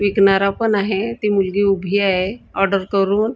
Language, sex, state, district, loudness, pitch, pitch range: Marathi, female, Maharashtra, Gondia, -18 LUFS, 200 Hz, 195-205 Hz